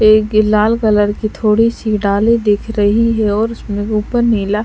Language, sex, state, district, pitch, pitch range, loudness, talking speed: Hindi, female, Bihar, Patna, 215 Hz, 210-225 Hz, -14 LUFS, 180 wpm